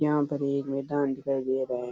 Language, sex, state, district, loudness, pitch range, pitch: Rajasthani, male, Rajasthan, Churu, -29 LUFS, 130-145 Hz, 140 Hz